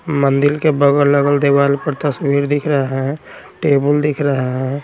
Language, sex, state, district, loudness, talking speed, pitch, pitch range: Hindi, male, Bihar, Patna, -15 LUFS, 160 wpm, 140 Hz, 140-145 Hz